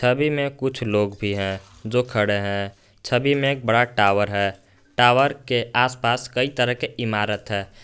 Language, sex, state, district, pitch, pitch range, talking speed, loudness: Hindi, male, Jharkhand, Garhwa, 115 Hz, 100-125 Hz, 175 wpm, -21 LUFS